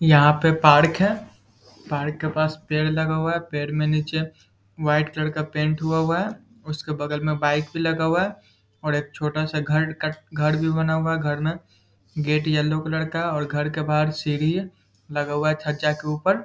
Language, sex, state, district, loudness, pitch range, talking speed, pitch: Hindi, male, Bihar, Muzaffarpur, -23 LUFS, 150-160 Hz, 215 wpm, 155 Hz